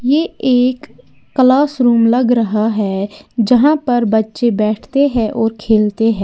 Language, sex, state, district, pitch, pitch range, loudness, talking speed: Hindi, female, Uttar Pradesh, Lalitpur, 235 Hz, 220-260 Hz, -14 LUFS, 145 wpm